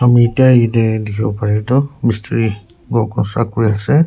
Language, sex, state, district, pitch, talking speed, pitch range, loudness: Nagamese, male, Nagaland, Kohima, 115 Hz, 150 wpm, 105-120 Hz, -15 LUFS